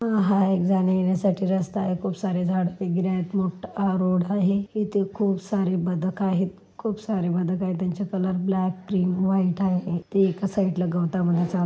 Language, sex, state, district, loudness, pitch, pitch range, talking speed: Marathi, female, Maharashtra, Solapur, -24 LUFS, 185 Hz, 180-195 Hz, 180 wpm